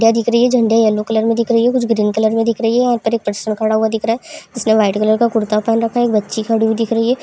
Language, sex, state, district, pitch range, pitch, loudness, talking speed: Hindi, female, West Bengal, North 24 Parganas, 220-235 Hz, 225 Hz, -15 LUFS, 330 wpm